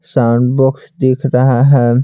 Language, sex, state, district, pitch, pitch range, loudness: Hindi, male, Bihar, Patna, 130 Hz, 125-135 Hz, -12 LUFS